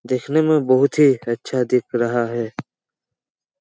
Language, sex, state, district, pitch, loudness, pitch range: Hindi, male, Chhattisgarh, Raigarh, 130 Hz, -19 LUFS, 120-145 Hz